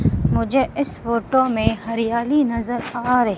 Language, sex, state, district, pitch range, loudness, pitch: Hindi, female, Madhya Pradesh, Umaria, 230-260 Hz, -20 LUFS, 240 Hz